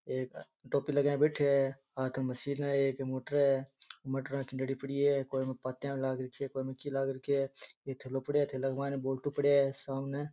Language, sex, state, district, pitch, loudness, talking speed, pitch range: Rajasthani, male, Rajasthan, Churu, 135 Hz, -34 LUFS, 105 wpm, 135-140 Hz